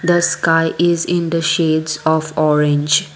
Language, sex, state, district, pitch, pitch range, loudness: English, female, Assam, Kamrup Metropolitan, 165 Hz, 155-170 Hz, -16 LUFS